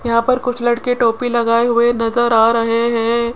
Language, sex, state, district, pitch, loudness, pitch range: Hindi, female, Rajasthan, Jaipur, 235 Hz, -15 LUFS, 230-240 Hz